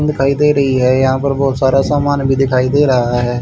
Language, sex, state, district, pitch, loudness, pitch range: Hindi, male, Haryana, Charkhi Dadri, 135 Hz, -13 LUFS, 130-140 Hz